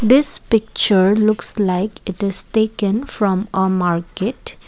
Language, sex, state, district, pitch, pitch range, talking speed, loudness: English, female, Assam, Kamrup Metropolitan, 200 Hz, 190-220 Hz, 130 wpm, -17 LUFS